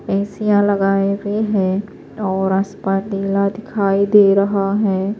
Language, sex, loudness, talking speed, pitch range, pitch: Urdu, female, -17 LUFS, 140 wpm, 195-205 Hz, 200 Hz